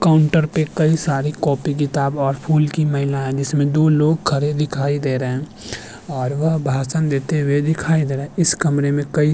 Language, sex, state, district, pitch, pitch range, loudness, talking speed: Hindi, male, Uttar Pradesh, Hamirpur, 145 Hz, 140-155 Hz, -18 LUFS, 205 wpm